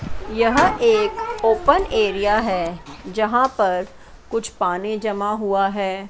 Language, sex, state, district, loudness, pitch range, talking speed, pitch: Hindi, female, Chandigarh, Chandigarh, -20 LUFS, 195-255 Hz, 120 wpm, 215 Hz